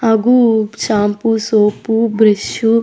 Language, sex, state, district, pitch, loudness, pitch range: Kannada, female, Karnataka, Dakshina Kannada, 225 Hz, -14 LUFS, 210-230 Hz